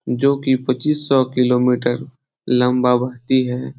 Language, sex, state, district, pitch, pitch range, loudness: Hindi, male, Bihar, Lakhisarai, 125 Hz, 125-135 Hz, -17 LUFS